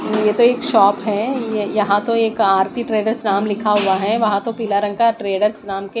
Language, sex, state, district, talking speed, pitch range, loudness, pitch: Hindi, female, Odisha, Nuapada, 240 wpm, 200-230 Hz, -17 LUFS, 210 Hz